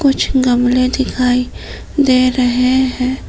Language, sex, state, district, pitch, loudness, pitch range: Hindi, female, Jharkhand, Palamu, 255 Hz, -14 LUFS, 250-260 Hz